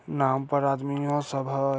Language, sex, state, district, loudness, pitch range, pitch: Maithili, male, Bihar, Samastipur, -27 LUFS, 135-145 Hz, 135 Hz